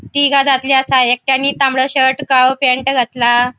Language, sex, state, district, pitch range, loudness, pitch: Konkani, female, Goa, North and South Goa, 255-270 Hz, -13 LUFS, 265 Hz